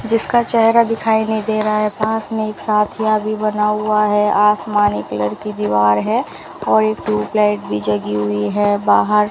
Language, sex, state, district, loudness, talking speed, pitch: Hindi, female, Rajasthan, Bikaner, -16 LUFS, 185 wpm, 210 Hz